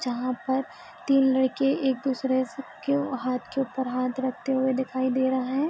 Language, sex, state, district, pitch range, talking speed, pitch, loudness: Hindi, female, Bihar, Gopalganj, 255-270 Hz, 200 wpm, 260 Hz, -26 LUFS